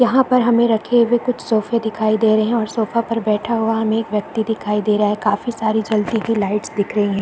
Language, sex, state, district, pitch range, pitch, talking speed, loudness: Hindi, female, Chhattisgarh, Balrampur, 210-230 Hz, 220 Hz, 255 wpm, -18 LUFS